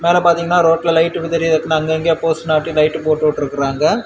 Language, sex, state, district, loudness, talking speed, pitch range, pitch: Tamil, male, Tamil Nadu, Kanyakumari, -15 LUFS, 190 wpm, 155-170 Hz, 160 Hz